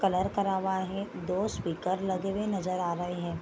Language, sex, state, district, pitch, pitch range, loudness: Hindi, female, Bihar, Gopalganj, 185 Hz, 180-195 Hz, -31 LUFS